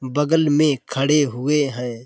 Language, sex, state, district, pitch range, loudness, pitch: Hindi, male, Uttar Pradesh, Budaun, 130-150 Hz, -19 LUFS, 145 Hz